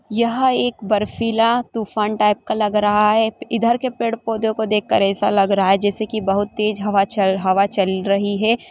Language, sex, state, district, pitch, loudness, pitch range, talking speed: Hindi, female, Chhattisgarh, Rajnandgaon, 210 Hz, -18 LUFS, 200-225 Hz, 200 wpm